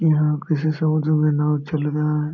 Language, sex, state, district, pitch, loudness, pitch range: Hindi, male, Bihar, Jamui, 150 Hz, -20 LUFS, 150-155 Hz